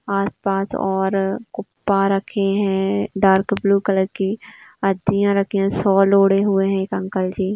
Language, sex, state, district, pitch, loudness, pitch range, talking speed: Hindi, female, Uttar Pradesh, Jyotiba Phule Nagar, 195 Hz, -19 LUFS, 195-200 Hz, 150 wpm